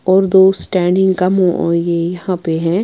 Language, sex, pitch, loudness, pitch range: Urdu, female, 185 Hz, -14 LUFS, 170-190 Hz